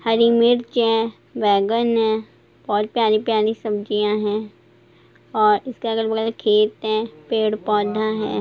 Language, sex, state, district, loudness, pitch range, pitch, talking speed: Hindi, female, Bihar, Gopalganj, -20 LUFS, 210-225 Hz, 220 Hz, 115 wpm